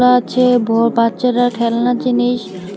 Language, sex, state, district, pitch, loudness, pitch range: Bengali, female, Tripura, West Tripura, 245 Hz, -15 LUFS, 230-250 Hz